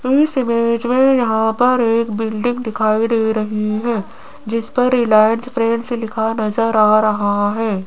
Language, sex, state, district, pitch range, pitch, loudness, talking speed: Hindi, female, Rajasthan, Jaipur, 215-240 Hz, 225 Hz, -16 LUFS, 160 wpm